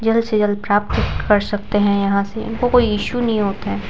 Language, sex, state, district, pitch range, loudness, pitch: Hindi, female, Bihar, Vaishali, 205-225 Hz, -18 LUFS, 210 Hz